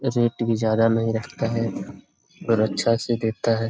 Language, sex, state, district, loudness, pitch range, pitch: Hindi, male, Bihar, Jamui, -23 LUFS, 110-115 Hz, 115 Hz